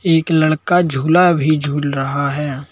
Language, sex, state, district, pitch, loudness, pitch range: Hindi, male, Madhya Pradesh, Bhopal, 155 Hz, -15 LUFS, 140-165 Hz